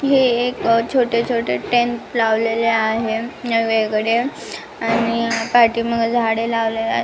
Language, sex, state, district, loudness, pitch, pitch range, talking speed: Marathi, female, Maharashtra, Nagpur, -18 LUFS, 230 Hz, 225-240 Hz, 120 wpm